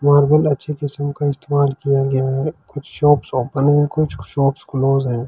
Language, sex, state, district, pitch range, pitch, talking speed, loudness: Hindi, male, Delhi, New Delhi, 135-145 Hz, 145 Hz, 180 wpm, -18 LUFS